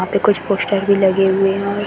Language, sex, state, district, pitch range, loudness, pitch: Hindi, female, Bihar, Gaya, 195-200 Hz, -15 LUFS, 200 Hz